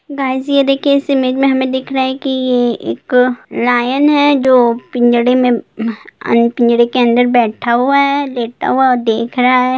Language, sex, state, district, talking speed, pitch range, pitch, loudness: Hindi, female, Bihar, Sitamarhi, 190 wpm, 240-270 Hz, 250 Hz, -13 LUFS